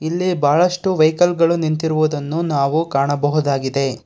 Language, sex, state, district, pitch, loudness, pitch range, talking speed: Kannada, male, Karnataka, Bangalore, 155 Hz, -17 LUFS, 145-170 Hz, 105 wpm